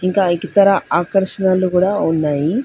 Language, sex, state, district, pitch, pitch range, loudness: Telugu, female, Telangana, Hyderabad, 185 Hz, 175-195 Hz, -16 LUFS